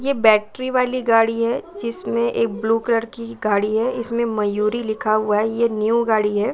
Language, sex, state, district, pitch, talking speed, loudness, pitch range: Hindi, female, Bihar, Saran, 225 Hz, 195 wpm, -20 LUFS, 210-235 Hz